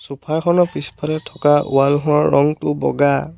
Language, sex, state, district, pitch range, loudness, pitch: Assamese, male, Assam, Sonitpur, 140-155 Hz, -17 LUFS, 150 Hz